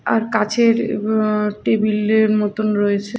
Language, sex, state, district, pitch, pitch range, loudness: Bengali, female, Odisha, Khordha, 215 Hz, 210-220 Hz, -18 LUFS